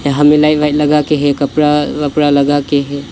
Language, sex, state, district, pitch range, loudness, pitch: Hindi, male, Arunachal Pradesh, Lower Dibang Valley, 145-150 Hz, -12 LUFS, 145 Hz